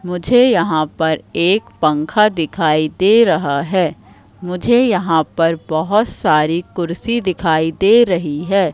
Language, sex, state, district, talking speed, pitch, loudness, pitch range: Hindi, female, Madhya Pradesh, Katni, 130 wpm, 175 Hz, -15 LUFS, 160-200 Hz